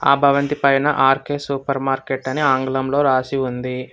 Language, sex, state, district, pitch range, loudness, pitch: Telugu, male, Telangana, Hyderabad, 130-140 Hz, -18 LUFS, 135 Hz